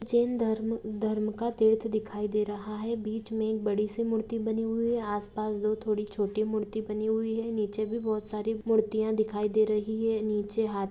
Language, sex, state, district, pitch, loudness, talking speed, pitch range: Hindi, female, Jharkhand, Jamtara, 220 Hz, -30 LUFS, 200 wpm, 210-225 Hz